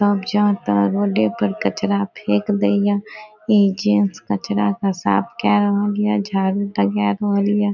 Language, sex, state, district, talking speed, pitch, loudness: Maithili, female, Bihar, Saharsa, 145 wpm, 190 Hz, -19 LUFS